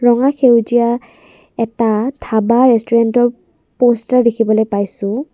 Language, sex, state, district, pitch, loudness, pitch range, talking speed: Assamese, female, Assam, Kamrup Metropolitan, 235 Hz, -14 LUFS, 225-245 Hz, 90 wpm